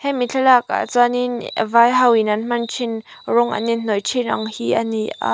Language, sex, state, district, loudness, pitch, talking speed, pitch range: Mizo, female, Mizoram, Aizawl, -18 LUFS, 235 Hz, 200 wpm, 220-245 Hz